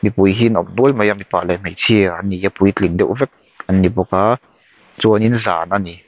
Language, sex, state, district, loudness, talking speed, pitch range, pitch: Mizo, male, Mizoram, Aizawl, -16 LUFS, 235 wpm, 95-105 Hz, 100 Hz